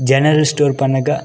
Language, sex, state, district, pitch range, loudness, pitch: Tulu, male, Karnataka, Dakshina Kannada, 135-150 Hz, -14 LUFS, 140 Hz